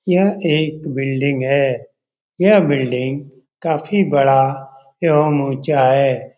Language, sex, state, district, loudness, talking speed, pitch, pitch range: Hindi, male, Bihar, Jamui, -16 LUFS, 105 wpm, 140 Hz, 135-155 Hz